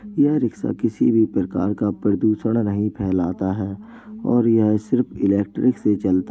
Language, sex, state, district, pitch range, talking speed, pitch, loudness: Hindi, male, Uttar Pradesh, Jalaun, 100-120 Hz, 160 wpm, 105 Hz, -20 LUFS